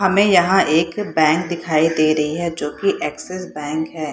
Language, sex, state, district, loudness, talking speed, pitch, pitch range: Hindi, female, Bihar, Purnia, -18 LUFS, 190 wpm, 165 Hz, 155-185 Hz